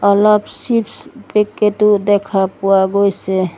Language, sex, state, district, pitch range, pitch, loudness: Assamese, female, Assam, Sonitpur, 195-210 Hz, 200 Hz, -15 LUFS